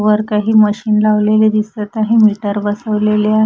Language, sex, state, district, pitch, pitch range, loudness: Marathi, female, Maharashtra, Washim, 215 Hz, 210-215 Hz, -13 LUFS